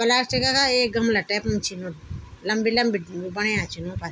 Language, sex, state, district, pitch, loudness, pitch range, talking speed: Garhwali, female, Uttarakhand, Tehri Garhwal, 220 Hz, -22 LUFS, 200-245 Hz, 220 wpm